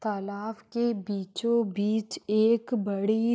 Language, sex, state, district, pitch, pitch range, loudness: Hindi, female, Jharkhand, Sahebganj, 215 Hz, 205-230 Hz, -28 LUFS